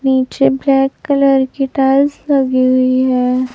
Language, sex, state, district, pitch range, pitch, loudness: Hindi, male, Chhattisgarh, Raipur, 255-275 Hz, 270 Hz, -13 LUFS